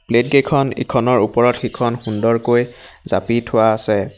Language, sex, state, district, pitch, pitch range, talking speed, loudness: Assamese, male, Assam, Hailakandi, 120 Hz, 110-125 Hz, 130 wpm, -17 LUFS